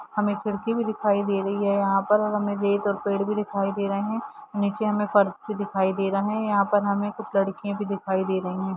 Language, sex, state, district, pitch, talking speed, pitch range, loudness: Hindi, female, Jharkhand, Sahebganj, 205 Hz, 245 wpm, 200-210 Hz, -25 LUFS